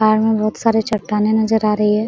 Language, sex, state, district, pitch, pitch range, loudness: Hindi, female, Jharkhand, Sahebganj, 215 Hz, 210-220 Hz, -16 LUFS